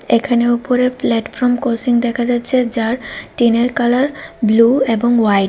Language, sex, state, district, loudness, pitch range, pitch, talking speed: Bengali, female, Tripura, West Tripura, -15 LUFS, 230-250 Hz, 240 Hz, 140 wpm